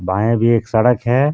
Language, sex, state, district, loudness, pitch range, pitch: Hindi, male, Jharkhand, Deoghar, -15 LUFS, 110-125 Hz, 115 Hz